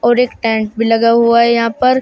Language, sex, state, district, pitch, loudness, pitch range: Hindi, male, Uttar Pradesh, Shamli, 235 Hz, -12 LUFS, 230-235 Hz